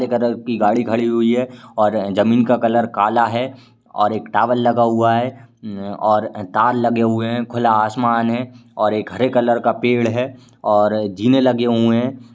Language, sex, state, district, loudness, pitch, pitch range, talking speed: Hindi, male, Uttar Pradesh, Varanasi, -17 LUFS, 120 Hz, 110-120 Hz, 195 wpm